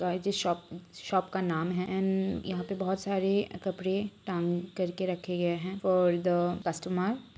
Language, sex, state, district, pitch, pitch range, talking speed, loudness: Hindi, female, Bihar, Saran, 185 Hz, 175-190 Hz, 170 wpm, -31 LUFS